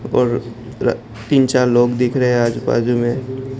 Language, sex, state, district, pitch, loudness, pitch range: Hindi, male, Gujarat, Gandhinagar, 125 Hz, -17 LUFS, 120-130 Hz